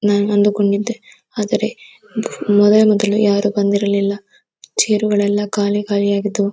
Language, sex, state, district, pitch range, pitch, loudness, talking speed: Kannada, female, Karnataka, Dakshina Kannada, 200-210 Hz, 205 Hz, -16 LUFS, 130 wpm